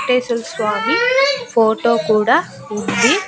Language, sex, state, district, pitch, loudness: Telugu, female, Andhra Pradesh, Annamaya, 235 Hz, -16 LUFS